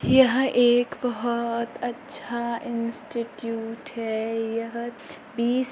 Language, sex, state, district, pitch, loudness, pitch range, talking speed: Hindi, female, Uttar Pradesh, Muzaffarnagar, 235 Hz, -26 LUFS, 230-245 Hz, 95 wpm